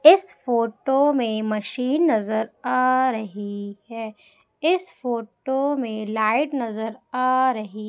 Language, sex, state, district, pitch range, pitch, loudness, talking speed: Hindi, female, Madhya Pradesh, Umaria, 215-270 Hz, 240 Hz, -23 LUFS, 115 wpm